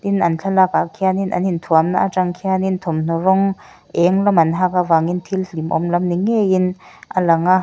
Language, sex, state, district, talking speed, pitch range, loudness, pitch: Mizo, female, Mizoram, Aizawl, 195 wpm, 170-190 Hz, -17 LUFS, 185 Hz